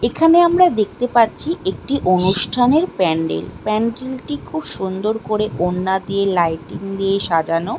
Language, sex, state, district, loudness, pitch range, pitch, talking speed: Bengali, female, West Bengal, Malda, -18 LUFS, 180-250 Hz, 210 Hz, 130 wpm